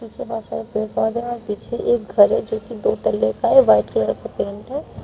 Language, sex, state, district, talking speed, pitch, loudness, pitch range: Hindi, female, Uttar Pradesh, Shamli, 260 wpm, 220 Hz, -20 LUFS, 210-235 Hz